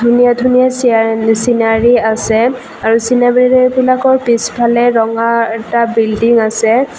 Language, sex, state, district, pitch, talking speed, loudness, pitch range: Assamese, female, Assam, Kamrup Metropolitan, 235 Hz, 95 wpm, -11 LUFS, 225-250 Hz